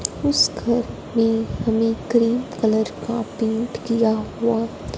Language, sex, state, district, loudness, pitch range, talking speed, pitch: Hindi, female, Punjab, Fazilka, -21 LUFS, 225-235 Hz, 120 wpm, 230 Hz